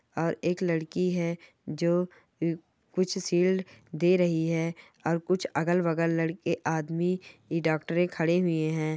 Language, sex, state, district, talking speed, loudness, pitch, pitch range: Hindi, female, Telangana, Karimnagar, 140 wpm, -28 LUFS, 170 Hz, 165-180 Hz